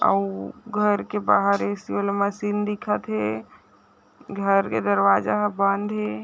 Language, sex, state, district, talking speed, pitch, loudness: Chhattisgarhi, female, Chhattisgarh, Raigarh, 165 wpm, 195 Hz, -23 LUFS